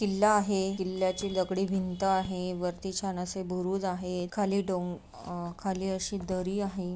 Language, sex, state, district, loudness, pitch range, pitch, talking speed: Marathi, female, Maharashtra, Aurangabad, -31 LUFS, 180-195 Hz, 190 Hz, 170 wpm